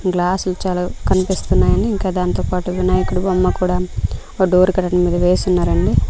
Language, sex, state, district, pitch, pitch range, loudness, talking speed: Telugu, female, Andhra Pradesh, Manyam, 185 Hz, 180-185 Hz, -17 LUFS, 120 wpm